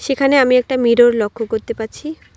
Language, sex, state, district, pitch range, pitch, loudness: Bengali, female, West Bengal, Alipurduar, 225-270 Hz, 240 Hz, -15 LUFS